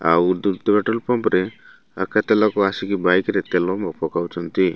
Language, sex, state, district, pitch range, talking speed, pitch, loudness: Odia, male, Odisha, Malkangiri, 90-105 Hz, 175 wpm, 95 Hz, -20 LUFS